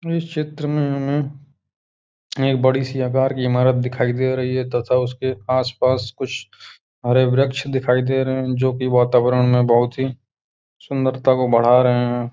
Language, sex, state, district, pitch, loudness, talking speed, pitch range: Hindi, male, Uttar Pradesh, Hamirpur, 130 Hz, -19 LUFS, 165 wpm, 125-135 Hz